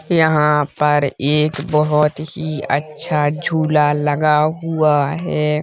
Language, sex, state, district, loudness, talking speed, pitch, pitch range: Hindi, male, Uttar Pradesh, Jalaun, -17 LUFS, 105 wpm, 150 Hz, 150-155 Hz